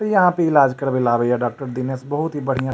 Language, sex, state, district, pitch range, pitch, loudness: Maithili, male, Bihar, Supaul, 125-150 Hz, 135 Hz, -19 LUFS